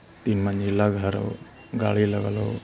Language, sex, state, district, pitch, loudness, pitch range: Hindi, male, Bihar, Lakhisarai, 100 Hz, -25 LUFS, 100-105 Hz